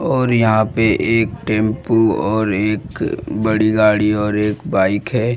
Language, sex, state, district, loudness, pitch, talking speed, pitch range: Hindi, male, Bihar, Jamui, -16 LUFS, 110 Hz, 145 wpm, 105-115 Hz